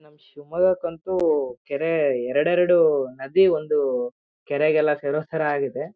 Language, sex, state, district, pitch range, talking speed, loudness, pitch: Kannada, male, Karnataka, Shimoga, 145-175 Hz, 110 wpm, -22 LUFS, 155 Hz